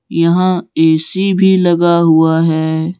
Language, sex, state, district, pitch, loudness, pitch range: Hindi, male, Jharkhand, Deoghar, 170 Hz, -12 LUFS, 160-185 Hz